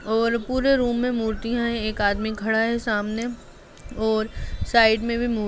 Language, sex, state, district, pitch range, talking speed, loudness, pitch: Hindi, female, Bihar, Gaya, 220-235 Hz, 175 wpm, -23 LUFS, 225 Hz